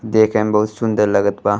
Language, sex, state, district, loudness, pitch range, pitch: Bhojpuri, male, Uttar Pradesh, Deoria, -16 LUFS, 105-110 Hz, 105 Hz